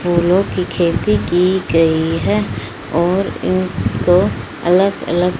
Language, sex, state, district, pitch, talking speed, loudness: Hindi, male, Punjab, Fazilka, 170 Hz, 120 wpm, -16 LUFS